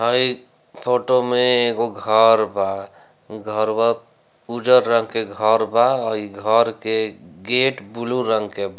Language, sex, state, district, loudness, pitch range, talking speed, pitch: Bhojpuri, male, Bihar, Gopalganj, -18 LUFS, 110-125 Hz, 135 wpm, 115 Hz